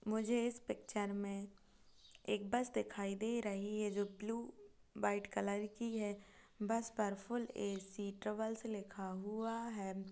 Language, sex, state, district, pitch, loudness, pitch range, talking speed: Hindi, female, Chhattisgarh, Kabirdham, 210 Hz, -42 LUFS, 200-230 Hz, 140 wpm